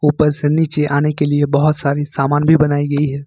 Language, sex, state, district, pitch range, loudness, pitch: Hindi, male, Jharkhand, Ranchi, 145-150 Hz, -15 LUFS, 145 Hz